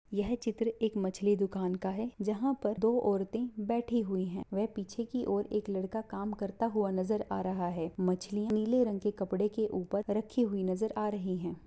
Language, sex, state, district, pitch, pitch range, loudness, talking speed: Hindi, female, Bihar, Samastipur, 205 Hz, 195-225 Hz, -33 LUFS, 205 wpm